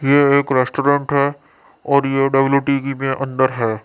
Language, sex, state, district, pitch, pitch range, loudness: Hindi, male, Rajasthan, Jaipur, 135 Hz, 135-140 Hz, -17 LUFS